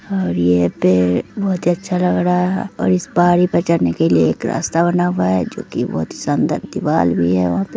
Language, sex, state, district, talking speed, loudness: Hindi, female, Bihar, Begusarai, 225 wpm, -17 LUFS